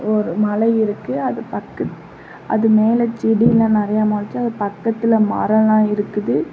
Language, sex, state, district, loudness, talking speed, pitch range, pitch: Tamil, female, Tamil Nadu, Namakkal, -17 LUFS, 130 wpm, 210-230 Hz, 220 Hz